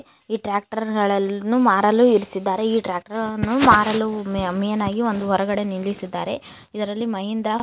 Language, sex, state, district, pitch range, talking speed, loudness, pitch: Kannada, female, Karnataka, Koppal, 200-225 Hz, 135 wpm, -21 LUFS, 210 Hz